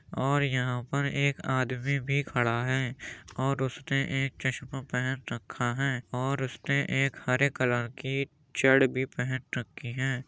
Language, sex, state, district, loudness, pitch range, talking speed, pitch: Hindi, male, Uttar Pradesh, Jyotiba Phule Nagar, -29 LUFS, 125-140 Hz, 150 wpm, 130 Hz